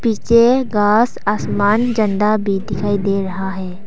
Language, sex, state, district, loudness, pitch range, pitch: Hindi, female, Arunachal Pradesh, Papum Pare, -16 LUFS, 195-225 Hz, 205 Hz